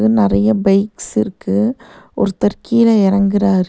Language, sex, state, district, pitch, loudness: Tamil, female, Tamil Nadu, Nilgiris, 195 Hz, -15 LUFS